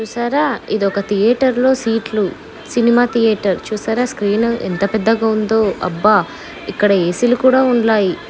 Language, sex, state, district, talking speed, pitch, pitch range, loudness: Telugu, female, Andhra Pradesh, Anantapur, 135 wpm, 220 Hz, 205-240 Hz, -15 LUFS